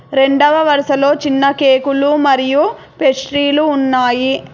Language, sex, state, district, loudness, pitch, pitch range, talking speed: Telugu, female, Telangana, Hyderabad, -13 LUFS, 275 Hz, 270-290 Hz, 95 wpm